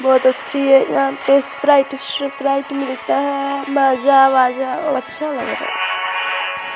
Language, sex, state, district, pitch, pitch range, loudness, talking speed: Hindi, female, Bihar, Vaishali, 275 Hz, 265-280 Hz, -17 LUFS, 125 wpm